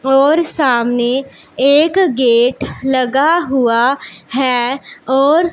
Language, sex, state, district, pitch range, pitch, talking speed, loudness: Hindi, female, Punjab, Pathankot, 245-290 Hz, 270 Hz, 85 wpm, -13 LUFS